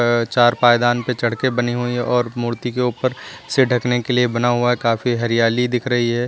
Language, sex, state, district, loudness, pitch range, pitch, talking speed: Hindi, male, Uttar Pradesh, Lucknow, -18 LUFS, 120-125 Hz, 120 Hz, 240 wpm